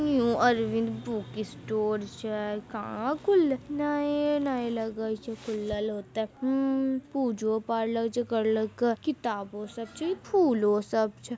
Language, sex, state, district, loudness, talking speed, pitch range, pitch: Magahi, female, Bihar, Jamui, -29 LUFS, 125 wpm, 220-270 Hz, 230 Hz